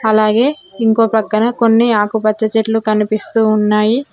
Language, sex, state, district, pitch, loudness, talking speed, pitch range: Telugu, female, Telangana, Mahabubabad, 220 Hz, -14 LUFS, 115 wpm, 215-225 Hz